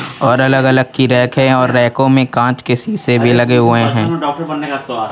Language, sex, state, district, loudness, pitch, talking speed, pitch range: Hindi, male, Jharkhand, Garhwa, -12 LUFS, 130 Hz, 190 wpm, 120-135 Hz